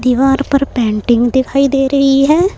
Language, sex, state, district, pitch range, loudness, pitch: Hindi, female, Uttar Pradesh, Saharanpur, 250-275 Hz, -12 LUFS, 270 Hz